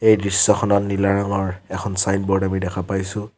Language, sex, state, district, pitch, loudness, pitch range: Assamese, male, Assam, Sonitpur, 100 Hz, -20 LUFS, 95-100 Hz